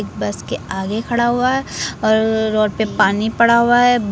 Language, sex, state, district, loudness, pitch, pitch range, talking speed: Hindi, female, Uttar Pradesh, Lucknow, -16 LUFS, 220 Hz, 205-235 Hz, 190 wpm